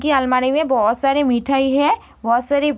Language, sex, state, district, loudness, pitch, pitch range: Hindi, female, Bihar, East Champaran, -17 LUFS, 275 Hz, 255-290 Hz